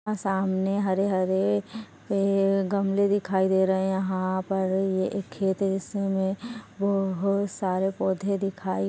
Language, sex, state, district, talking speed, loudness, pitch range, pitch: Hindi, female, Maharashtra, Solapur, 135 wpm, -26 LUFS, 190-200 Hz, 195 Hz